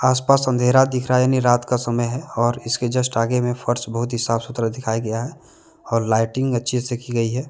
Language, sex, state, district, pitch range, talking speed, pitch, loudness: Hindi, male, Jharkhand, Deoghar, 115-125 Hz, 245 wpm, 120 Hz, -20 LUFS